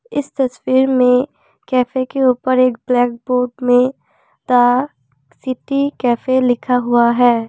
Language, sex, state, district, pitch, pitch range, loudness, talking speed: Hindi, female, Assam, Kamrup Metropolitan, 250 Hz, 245-260 Hz, -16 LUFS, 130 wpm